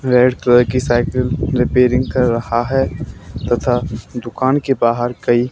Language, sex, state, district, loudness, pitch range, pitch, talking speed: Hindi, male, Haryana, Charkhi Dadri, -16 LUFS, 120-130 Hz, 125 Hz, 140 wpm